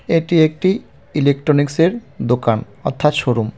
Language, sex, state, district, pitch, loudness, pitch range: Bengali, male, West Bengal, Cooch Behar, 150 Hz, -17 LUFS, 125-165 Hz